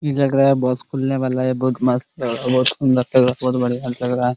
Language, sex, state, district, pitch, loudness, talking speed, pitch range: Hindi, male, Bihar, Araria, 130 Hz, -18 LUFS, 290 wpm, 125-135 Hz